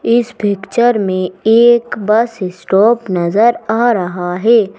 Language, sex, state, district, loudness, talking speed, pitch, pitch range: Hindi, female, Madhya Pradesh, Bhopal, -13 LUFS, 125 wpm, 215 Hz, 185-235 Hz